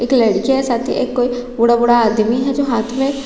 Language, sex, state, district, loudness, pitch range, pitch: Hindi, female, Chhattisgarh, Raigarh, -15 LUFS, 235-265 Hz, 245 Hz